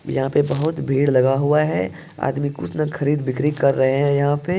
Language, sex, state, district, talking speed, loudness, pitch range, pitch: Hindi, male, Bihar, Purnia, 195 wpm, -20 LUFS, 135-150 Hz, 145 Hz